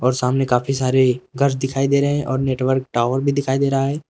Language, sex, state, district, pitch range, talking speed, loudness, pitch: Hindi, male, Uttar Pradesh, Lucknow, 130-140 Hz, 250 wpm, -19 LUFS, 135 Hz